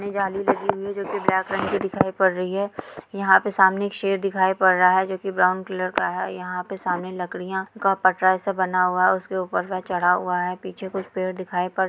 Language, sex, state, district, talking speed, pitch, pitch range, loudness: Hindi, female, Bihar, East Champaran, 240 wpm, 190 Hz, 185-195 Hz, -22 LUFS